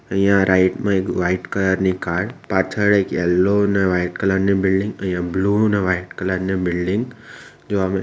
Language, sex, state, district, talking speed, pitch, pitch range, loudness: Gujarati, male, Gujarat, Valsad, 195 wpm, 95 Hz, 95-100 Hz, -19 LUFS